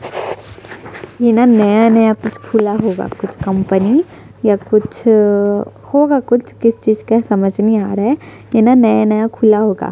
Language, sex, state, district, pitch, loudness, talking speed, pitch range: Hindi, female, Chhattisgarh, Sukma, 220 Hz, -13 LUFS, 175 wpm, 210-235 Hz